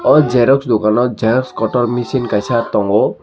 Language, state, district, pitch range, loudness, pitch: Kokborok, Tripura, Dhalai, 115-125 Hz, -14 LUFS, 120 Hz